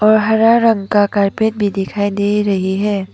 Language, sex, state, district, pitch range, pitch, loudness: Hindi, female, Arunachal Pradesh, Papum Pare, 200-215 Hz, 205 Hz, -15 LUFS